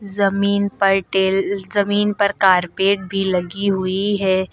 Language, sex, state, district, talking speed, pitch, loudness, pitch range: Hindi, female, Uttar Pradesh, Lucknow, 135 wpm, 195 Hz, -18 LUFS, 190-200 Hz